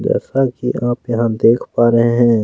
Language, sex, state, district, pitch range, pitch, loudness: Hindi, male, Chhattisgarh, Kabirdham, 115-125 Hz, 120 Hz, -15 LUFS